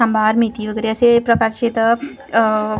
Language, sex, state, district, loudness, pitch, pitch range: Marathi, female, Maharashtra, Gondia, -16 LUFS, 225 Hz, 215-230 Hz